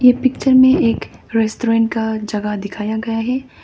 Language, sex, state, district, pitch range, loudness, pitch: Hindi, female, Arunachal Pradesh, Papum Pare, 215-250 Hz, -17 LUFS, 225 Hz